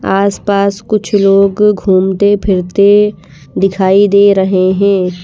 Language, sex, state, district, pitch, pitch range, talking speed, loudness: Hindi, female, Madhya Pradesh, Bhopal, 200 Hz, 190-205 Hz, 105 wpm, -10 LUFS